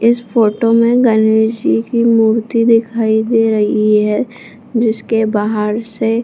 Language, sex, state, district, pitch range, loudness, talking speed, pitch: Hindi, female, Bihar, Jamui, 220-230 Hz, -13 LUFS, 145 wpm, 225 Hz